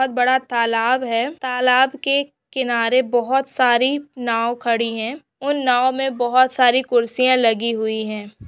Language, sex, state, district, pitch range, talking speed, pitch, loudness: Hindi, female, Maharashtra, Pune, 235-260 Hz, 150 wpm, 250 Hz, -19 LUFS